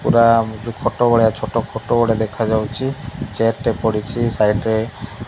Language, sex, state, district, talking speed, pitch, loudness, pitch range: Odia, male, Odisha, Malkangiri, 150 wpm, 115 Hz, -18 LUFS, 110-120 Hz